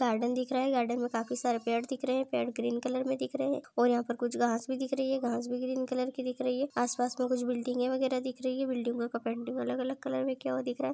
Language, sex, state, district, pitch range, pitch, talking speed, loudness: Hindi, female, West Bengal, North 24 Parganas, 240-260 Hz, 250 Hz, 305 wpm, -32 LUFS